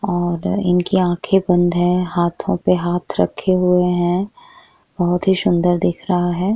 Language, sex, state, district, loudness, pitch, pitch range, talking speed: Hindi, female, Uttar Pradesh, Jyotiba Phule Nagar, -17 LUFS, 180 Hz, 175-185 Hz, 155 wpm